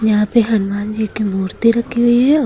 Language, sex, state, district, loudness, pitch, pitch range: Hindi, female, Uttar Pradesh, Lucknow, -14 LUFS, 220 Hz, 210-235 Hz